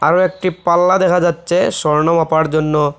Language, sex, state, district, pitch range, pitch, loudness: Bengali, male, Assam, Hailakandi, 155-180 Hz, 170 Hz, -14 LUFS